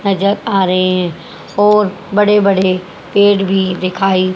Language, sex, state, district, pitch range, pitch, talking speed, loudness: Hindi, female, Haryana, Charkhi Dadri, 185-200 Hz, 195 Hz, 135 wpm, -13 LUFS